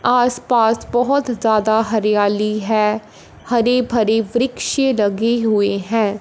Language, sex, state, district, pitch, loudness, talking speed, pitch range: Hindi, female, Punjab, Fazilka, 225 Hz, -17 LUFS, 115 wpm, 210-245 Hz